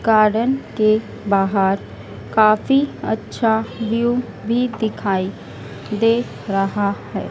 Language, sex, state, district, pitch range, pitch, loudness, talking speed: Hindi, female, Madhya Pradesh, Dhar, 195-230 Hz, 215 Hz, -19 LUFS, 90 wpm